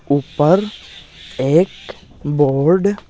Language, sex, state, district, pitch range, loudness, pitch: Hindi, male, Bihar, West Champaran, 145-185 Hz, -16 LUFS, 150 Hz